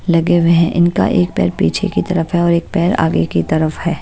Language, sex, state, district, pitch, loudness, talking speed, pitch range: Hindi, female, Haryana, Jhajjar, 170 Hz, -15 LUFS, 255 wpm, 155-170 Hz